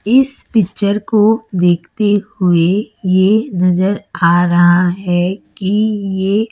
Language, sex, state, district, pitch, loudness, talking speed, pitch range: Hindi, female, Chhattisgarh, Raipur, 195 Hz, -14 LUFS, 110 wpm, 180-215 Hz